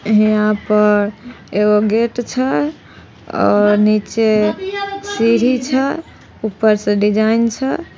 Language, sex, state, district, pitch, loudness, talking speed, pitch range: Maithili, female, Bihar, Samastipur, 220 Hz, -15 LUFS, 100 wpm, 210-250 Hz